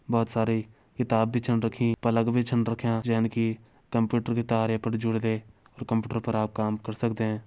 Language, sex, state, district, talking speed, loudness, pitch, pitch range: Garhwali, male, Uttarakhand, Uttarkashi, 200 wpm, -27 LUFS, 115 Hz, 110-115 Hz